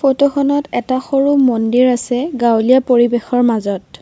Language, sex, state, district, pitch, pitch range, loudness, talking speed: Assamese, female, Assam, Kamrup Metropolitan, 250 Hz, 240-275 Hz, -14 LUFS, 120 wpm